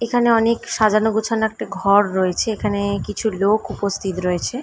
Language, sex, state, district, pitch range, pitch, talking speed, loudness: Bengali, female, West Bengal, Dakshin Dinajpur, 195-225 Hz, 215 Hz, 170 wpm, -19 LUFS